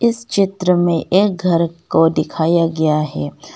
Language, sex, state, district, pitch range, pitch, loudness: Hindi, female, Arunachal Pradesh, Longding, 160-190 Hz, 170 Hz, -16 LUFS